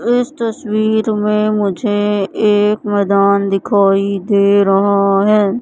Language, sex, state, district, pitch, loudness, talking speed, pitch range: Hindi, female, Madhya Pradesh, Katni, 205 Hz, -14 LUFS, 105 wpm, 200-215 Hz